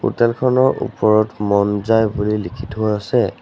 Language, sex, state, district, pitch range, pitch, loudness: Assamese, male, Assam, Sonitpur, 105-120 Hz, 110 Hz, -17 LUFS